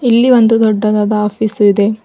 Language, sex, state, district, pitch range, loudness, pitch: Kannada, female, Karnataka, Bidar, 210-225 Hz, -11 LUFS, 215 Hz